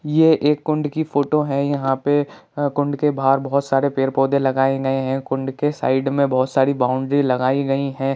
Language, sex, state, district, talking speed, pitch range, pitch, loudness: Hindi, male, Bihar, Saran, 220 wpm, 135-145 Hz, 135 Hz, -19 LUFS